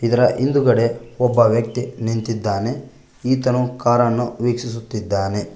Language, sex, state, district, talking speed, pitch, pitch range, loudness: Kannada, male, Karnataka, Koppal, 85 wpm, 120 Hz, 115-125 Hz, -19 LUFS